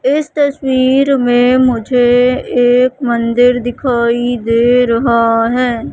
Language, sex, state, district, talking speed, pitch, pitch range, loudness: Hindi, female, Madhya Pradesh, Katni, 100 wpm, 245 Hz, 240-255 Hz, -12 LUFS